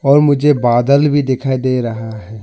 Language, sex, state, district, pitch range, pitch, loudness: Hindi, male, Arunachal Pradesh, Lower Dibang Valley, 120-140 Hz, 130 Hz, -13 LUFS